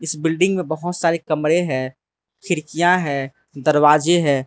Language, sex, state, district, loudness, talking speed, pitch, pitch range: Hindi, male, Arunachal Pradesh, Lower Dibang Valley, -19 LUFS, 150 wpm, 160 Hz, 150-175 Hz